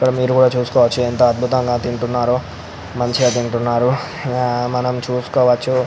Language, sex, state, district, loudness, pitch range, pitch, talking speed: Telugu, male, Andhra Pradesh, Visakhapatnam, -17 LUFS, 120-125 Hz, 125 Hz, 125 wpm